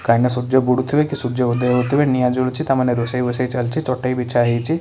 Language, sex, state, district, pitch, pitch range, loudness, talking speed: Odia, male, Odisha, Khordha, 125 Hz, 125-130 Hz, -18 LUFS, 185 wpm